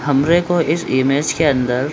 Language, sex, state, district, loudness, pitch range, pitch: Hindi, male, Bihar, Supaul, -16 LUFS, 130-165 Hz, 145 Hz